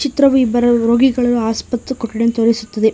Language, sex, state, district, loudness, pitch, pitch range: Kannada, female, Karnataka, Bangalore, -15 LUFS, 235 Hz, 230-255 Hz